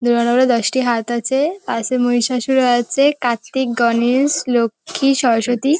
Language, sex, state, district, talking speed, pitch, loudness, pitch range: Bengali, female, West Bengal, North 24 Parganas, 135 wpm, 245 Hz, -16 LUFS, 235-265 Hz